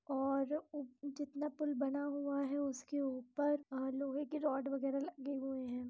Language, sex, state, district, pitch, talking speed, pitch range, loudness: Hindi, female, Bihar, East Champaran, 280 Hz, 155 wpm, 270-290 Hz, -40 LUFS